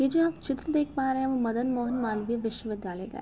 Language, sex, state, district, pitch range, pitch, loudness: Hindi, female, Uttar Pradesh, Gorakhpur, 225-270 Hz, 250 Hz, -29 LUFS